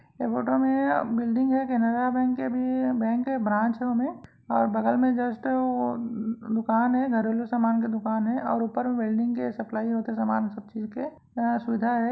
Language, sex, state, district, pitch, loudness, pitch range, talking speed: Chhattisgarhi, female, Chhattisgarh, Raigarh, 230 Hz, -26 LUFS, 220-250 Hz, 195 wpm